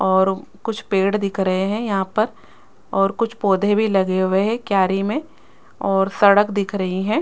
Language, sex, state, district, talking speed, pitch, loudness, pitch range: Hindi, female, Rajasthan, Jaipur, 185 wpm, 195 Hz, -19 LUFS, 190-210 Hz